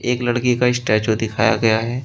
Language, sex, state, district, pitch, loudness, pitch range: Hindi, male, Uttar Pradesh, Shamli, 115 Hz, -18 LUFS, 110-125 Hz